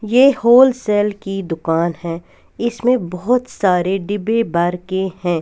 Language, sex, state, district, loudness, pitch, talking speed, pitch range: Hindi, female, Punjab, Kapurthala, -17 LUFS, 195 Hz, 120 wpm, 175-235 Hz